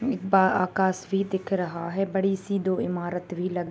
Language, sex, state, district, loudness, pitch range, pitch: Hindi, male, Bihar, Bhagalpur, -26 LUFS, 180-195 Hz, 190 Hz